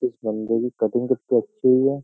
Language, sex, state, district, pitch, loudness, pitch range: Hindi, male, Uttar Pradesh, Jyotiba Phule Nagar, 120 Hz, -22 LUFS, 115-130 Hz